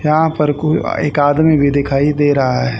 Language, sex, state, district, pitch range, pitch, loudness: Hindi, female, Haryana, Charkhi Dadri, 140-155 Hz, 145 Hz, -14 LUFS